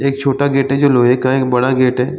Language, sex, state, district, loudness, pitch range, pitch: Hindi, male, Bihar, Saran, -14 LUFS, 125-140 Hz, 130 Hz